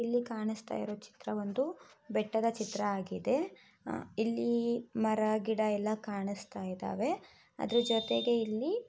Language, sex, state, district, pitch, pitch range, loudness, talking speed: Kannada, female, Karnataka, Shimoga, 220 Hz, 210-235 Hz, -34 LUFS, 120 wpm